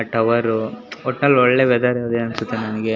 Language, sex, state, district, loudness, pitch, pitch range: Kannada, male, Karnataka, Shimoga, -18 LUFS, 115 Hz, 110-125 Hz